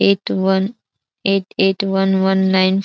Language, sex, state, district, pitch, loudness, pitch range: Marathi, female, Maharashtra, Dhule, 190 Hz, -17 LUFS, 190-195 Hz